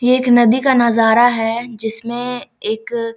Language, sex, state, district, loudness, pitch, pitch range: Maithili, female, Bihar, Samastipur, -15 LUFS, 235 Hz, 225-245 Hz